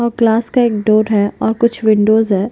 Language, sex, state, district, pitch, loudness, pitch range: Hindi, female, Chhattisgarh, Jashpur, 220 Hz, -13 LUFS, 215-235 Hz